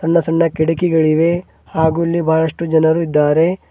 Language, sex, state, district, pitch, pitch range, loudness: Kannada, male, Karnataka, Bidar, 165 Hz, 160-170 Hz, -15 LUFS